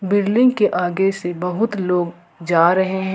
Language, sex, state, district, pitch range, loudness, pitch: Hindi, female, Jharkhand, Ranchi, 175-200 Hz, -18 LUFS, 190 Hz